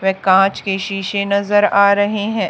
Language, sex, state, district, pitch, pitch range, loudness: Hindi, female, Haryana, Charkhi Dadri, 200 Hz, 195-205 Hz, -15 LUFS